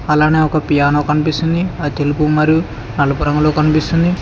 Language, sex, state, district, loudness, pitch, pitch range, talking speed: Telugu, male, Telangana, Hyderabad, -15 LUFS, 150 Hz, 145-155 Hz, 155 wpm